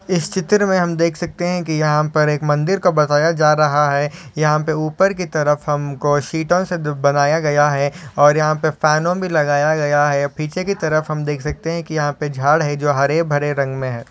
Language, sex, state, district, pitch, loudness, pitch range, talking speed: Hindi, male, Maharashtra, Solapur, 150 Hz, -17 LUFS, 145-165 Hz, 230 wpm